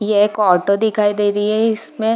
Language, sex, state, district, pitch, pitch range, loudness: Hindi, female, Bihar, Purnia, 210 Hz, 205-220 Hz, -16 LUFS